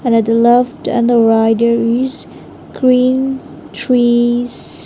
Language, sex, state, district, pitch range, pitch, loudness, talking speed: English, female, Nagaland, Dimapur, 235-255 Hz, 240 Hz, -13 LUFS, 110 wpm